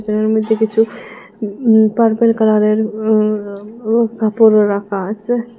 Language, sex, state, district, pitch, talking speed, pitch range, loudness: Bengali, female, Assam, Hailakandi, 220 Hz, 120 wpm, 215-225 Hz, -14 LUFS